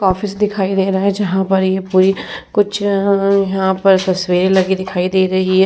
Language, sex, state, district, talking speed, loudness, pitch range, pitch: Hindi, female, Uttar Pradesh, Etah, 200 wpm, -15 LUFS, 190-195 Hz, 190 Hz